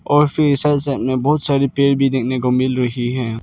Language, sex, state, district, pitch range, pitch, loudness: Hindi, male, Arunachal Pradesh, Lower Dibang Valley, 125-145 Hz, 135 Hz, -16 LUFS